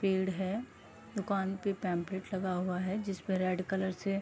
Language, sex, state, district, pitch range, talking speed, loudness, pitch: Hindi, female, Uttar Pradesh, Gorakhpur, 185-195 Hz, 185 wpm, -35 LUFS, 190 Hz